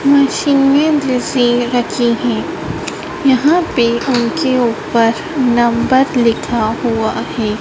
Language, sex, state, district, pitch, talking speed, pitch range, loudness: Hindi, female, Madhya Pradesh, Dhar, 245 Hz, 95 wpm, 235-275 Hz, -14 LUFS